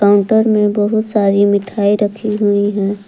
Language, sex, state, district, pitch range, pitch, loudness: Hindi, female, Jharkhand, Palamu, 200-210 Hz, 205 Hz, -14 LUFS